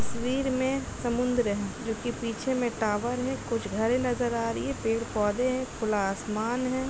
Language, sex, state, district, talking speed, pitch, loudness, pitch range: Hindi, female, Bihar, East Champaran, 185 wpm, 240 Hz, -29 LUFS, 220-250 Hz